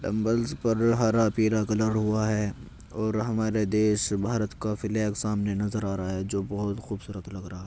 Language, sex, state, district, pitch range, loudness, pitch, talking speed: Hindi, male, Uttar Pradesh, Jyotiba Phule Nagar, 100-110 Hz, -27 LUFS, 105 Hz, 195 wpm